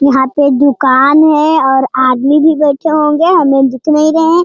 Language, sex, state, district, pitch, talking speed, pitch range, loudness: Hindi, female, Bihar, Jamui, 290 Hz, 205 wpm, 265-315 Hz, -9 LUFS